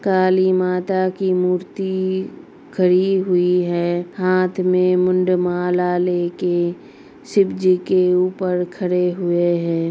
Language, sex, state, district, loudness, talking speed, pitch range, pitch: Hindi, female, Uttar Pradesh, Gorakhpur, -18 LUFS, 115 wpm, 180-185 Hz, 180 Hz